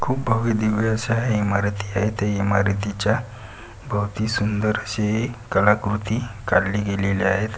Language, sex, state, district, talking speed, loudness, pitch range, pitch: Marathi, male, Maharashtra, Pune, 120 wpm, -22 LUFS, 100-110 Hz, 105 Hz